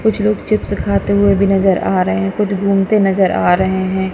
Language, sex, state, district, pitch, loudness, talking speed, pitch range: Hindi, female, Punjab, Kapurthala, 195 Hz, -14 LUFS, 230 wpm, 185-200 Hz